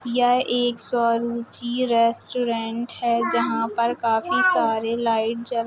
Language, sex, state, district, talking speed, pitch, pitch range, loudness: Hindi, female, Uttar Pradesh, Budaun, 135 wpm, 235 Hz, 230-245 Hz, -22 LUFS